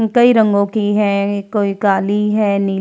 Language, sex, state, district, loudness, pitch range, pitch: Hindi, female, Uttar Pradesh, Hamirpur, -15 LUFS, 200-215 Hz, 205 Hz